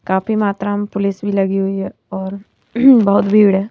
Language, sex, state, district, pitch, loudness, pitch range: Hindi, female, Madhya Pradesh, Bhopal, 200 Hz, -15 LUFS, 195-205 Hz